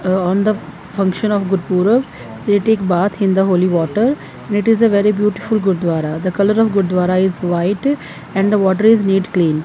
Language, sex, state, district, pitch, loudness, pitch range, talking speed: English, female, Punjab, Fazilka, 195 Hz, -16 LUFS, 180-210 Hz, 200 wpm